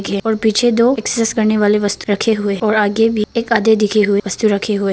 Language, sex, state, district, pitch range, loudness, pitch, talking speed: Hindi, female, Arunachal Pradesh, Papum Pare, 205-225 Hz, -15 LUFS, 215 Hz, 255 wpm